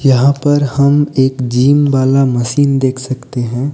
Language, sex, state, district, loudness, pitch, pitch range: Hindi, male, Odisha, Nuapada, -12 LUFS, 135 Hz, 130-140 Hz